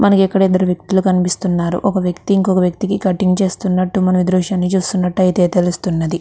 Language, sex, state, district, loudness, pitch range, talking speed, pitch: Telugu, female, Andhra Pradesh, Chittoor, -15 LUFS, 180-190 Hz, 155 wpm, 185 Hz